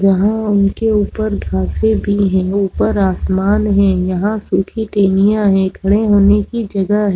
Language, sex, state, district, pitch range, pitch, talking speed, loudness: Hindi, female, Chhattisgarh, Raigarh, 190-210 Hz, 200 Hz, 150 wpm, -14 LUFS